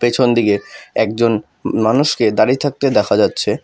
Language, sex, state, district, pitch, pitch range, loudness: Bengali, male, West Bengal, Alipurduar, 120 Hz, 110-135 Hz, -16 LUFS